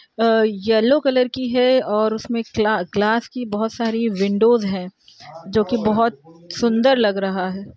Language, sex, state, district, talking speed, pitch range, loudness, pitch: Hindi, female, Bihar, Araria, 160 wpm, 205-240 Hz, -19 LUFS, 220 Hz